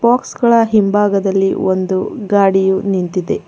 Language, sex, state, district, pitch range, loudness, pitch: Kannada, female, Karnataka, Bangalore, 190-215 Hz, -14 LUFS, 195 Hz